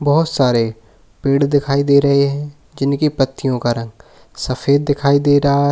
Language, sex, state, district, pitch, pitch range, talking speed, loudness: Hindi, male, Uttar Pradesh, Lalitpur, 140 Hz, 130-145 Hz, 170 wpm, -16 LUFS